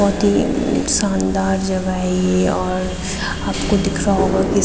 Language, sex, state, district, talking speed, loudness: Hindi, female, Uttarakhand, Tehri Garhwal, 165 wpm, -18 LUFS